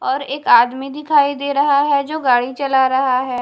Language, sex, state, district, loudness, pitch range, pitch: Hindi, female, Bihar, Katihar, -16 LUFS, 260-285 Hz, 275 Hz